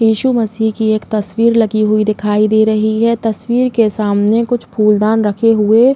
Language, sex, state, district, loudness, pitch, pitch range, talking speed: Hindi, female, Uttar Pradesh, Jalaun, -13 LUFS, 220 Hz, 215-230 Hz, 190 wpm